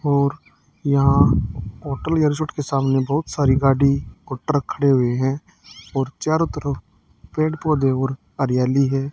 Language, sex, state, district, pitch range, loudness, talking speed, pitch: Hindi, female, Haryana, Charkhi Dadri, 130-145 Hz, -20 LUFS, 150 wpm, 140 Hz